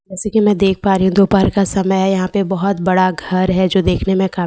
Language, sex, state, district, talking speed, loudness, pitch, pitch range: Hindi, female, Bihar, Katihar, 295 wpm, -15 LUFS, 190 Hz, 185-195 Hz